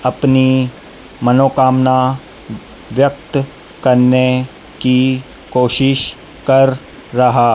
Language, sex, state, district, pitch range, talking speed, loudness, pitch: Hindi, male, Madhya Pradesh, Dhar, 125-135 Hz, 65 wpm, -14 LUFS, 130 Hz